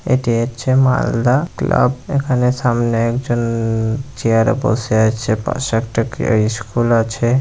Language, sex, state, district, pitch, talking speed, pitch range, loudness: Bengali, male, West Bengal, Malda, 120 Hz, 135 wpm, 115-130 Hz, -17 LUFS